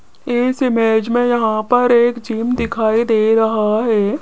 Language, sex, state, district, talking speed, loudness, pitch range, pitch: Hindi, female, Rajasthan, Jaipur, 155 wpm, -15 LUFS, 220-245 Hz, 230 Hz